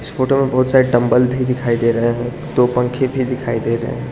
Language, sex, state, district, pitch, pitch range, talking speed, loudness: Hindi, male, Arunachal Pradesh, Lower Dibang Valley, 125 Hz, 120-130 Hz, 245 wpm, -16 LUFS